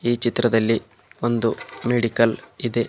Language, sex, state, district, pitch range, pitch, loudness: Kannada, male, Karnataka, Bidar, 115-120 Hz, 115 Hz, -21 LUFS